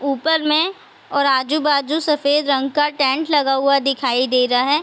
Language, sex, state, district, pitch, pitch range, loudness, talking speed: Hindi, female, Bihar, Kishanganj, 285 Hz, 270-300 Hz, -17 LUFS, 175 wpm